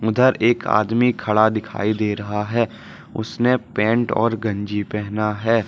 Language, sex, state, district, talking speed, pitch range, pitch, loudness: Hindi, male, Jharkhand, Deoghar, 150 wpm, 105-115 Hz, 110 Hz, -20 LUFS